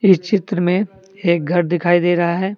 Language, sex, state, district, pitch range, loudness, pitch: Hindi, male, Jharkhand, Deoghar, 175-190 Hz, -17 LUFS, 175 Hz